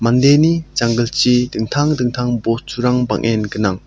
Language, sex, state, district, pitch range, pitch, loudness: Garo, male, Meghalaya, South Garo Hills, 115-125 Hz, 120 Hz, -16 LUFS